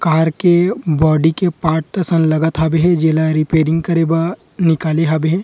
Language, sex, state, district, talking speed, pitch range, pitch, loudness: Chhattisgarhi, male, Chhattisgarh, Rajnandgaon, 175 wpm, 160-170 Hz, 160 Hz, -15 LUFS